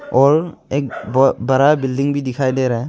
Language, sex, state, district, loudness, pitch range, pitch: Hindi, male, Arunachal Pradesh, Longding, -17 LUFS, 130-140 Hz, 135 Hz